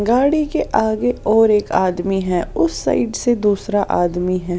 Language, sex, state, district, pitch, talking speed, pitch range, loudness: Hindi, female, Odisha, Sambalpur, 210 Hz, 170 wpm, 185-240 Hz, -17 LUFS